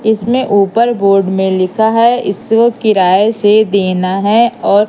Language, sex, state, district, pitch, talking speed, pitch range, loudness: Hindi, female, Madhya Pradesh, Katni, 210 Hz, 145 wpm, 195-230 Hz, -11 LUFS